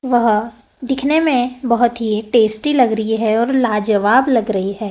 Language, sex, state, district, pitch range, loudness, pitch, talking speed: Hindi, female, Maharashtra, Gondia, 215-255 Hz, -16 LUFS, 235 Hz, 170 wpm